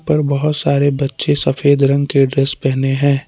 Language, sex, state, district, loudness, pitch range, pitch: Hindi, male, Jharkhand, Palamu, -15 LUFS, 135-140 Hz, 140 Hz